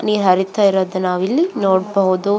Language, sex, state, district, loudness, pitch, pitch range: Kannada, female, Karnataka, Belgaum, -16 LUFS, 195 Hz, 185-205 Hz